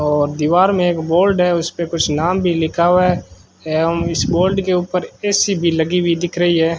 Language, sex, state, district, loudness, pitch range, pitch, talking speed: Hindi, male, Rajasthan, Bikaner, -16 LUFS, 160-180 Hz, 170 Hz, 230 wpm